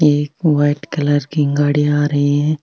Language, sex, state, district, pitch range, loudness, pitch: Marwari, female, Rajasthan, Nagaur, 145-150 Hz, -16 LUFS, 145 Hz